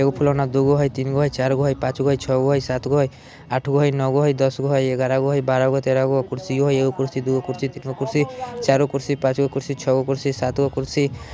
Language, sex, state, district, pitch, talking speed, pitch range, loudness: Bajjika, male, Bihar, Vaishali, 135 Hz, 235 wpm, 130-140 Hz, -21 LUFS